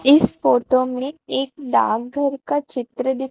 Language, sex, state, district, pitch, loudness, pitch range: Hindi, female, Chhattisgarh, Raipur, 265 Hz, -20 LUFS, 255-280 Hz